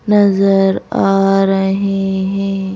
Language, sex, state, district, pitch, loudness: Hindi, female, Madhya Pradesh, Bhopal, 195 Hz, -14 LUFS